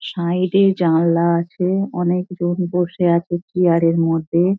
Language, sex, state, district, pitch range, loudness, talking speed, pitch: Bengali, female, West Bengal, Dakshin Dinajpur, 170-180 Hz, -18 LUFS, 120 wpm, 175 Hz